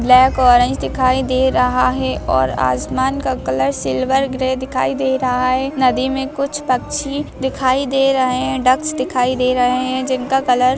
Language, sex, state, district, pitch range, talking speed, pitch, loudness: Hindi, female, Jharkhand, Sahebganj, 250-265 Hz, 180 wpm, 255 Hz, -16 LUFS